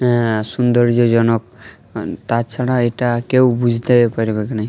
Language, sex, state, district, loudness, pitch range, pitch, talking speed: Bengali, male, Jharkhand, Jamtara, -16 LUFS, 115-120 Hz, 120 Hz, 100 wpm